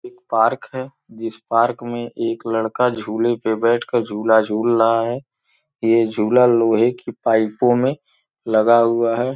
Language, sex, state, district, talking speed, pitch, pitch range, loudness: Hindi, male, Uttar Pradesh, Gorakhpur, 155 wpm, 115 Hz, 115-120 Hz, -18 LUFS